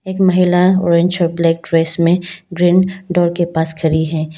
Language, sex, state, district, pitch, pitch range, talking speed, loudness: Hindi, female, Arunachal Pradesh, Lower Dibang Valley, 175 Hz, 165-180 Hz, 165 wpm, -14 LUFS